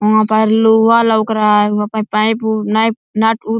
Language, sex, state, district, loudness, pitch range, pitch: Hindi, male, Jharkhand, Sahebganj, -13 LUFS, 215-225 Hz, 220 Hz